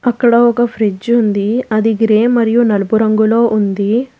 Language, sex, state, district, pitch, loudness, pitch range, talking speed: Telugu, female, Telangana, Hyderabad, 225 Hz, -13 LUFS, 215-235 Hz, 145 wpm